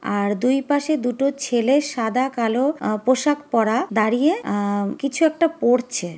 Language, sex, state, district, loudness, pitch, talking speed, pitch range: Bengali, female, West Bengal, Jhargram, -20 LUFS, 250 Hz, 145 wpm, 225-285 Hz